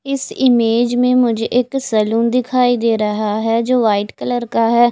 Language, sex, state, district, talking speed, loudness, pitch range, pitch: Hindi, female, Odisha, Nuapada, 185 wpm, -16 LUFS, 225-250 Hz, 235 Hz